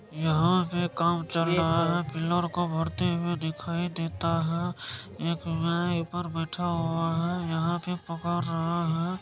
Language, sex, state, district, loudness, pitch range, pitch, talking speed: Maithili, male, Bihar, Supaul, -28 LUFS, 165-175 Hz, 170 Hz, 150 wpm